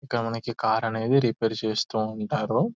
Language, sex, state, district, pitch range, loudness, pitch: Telugu, male, Telangana, Nalgonda, 110-120 Hz, -26 LUFS, 115 Hz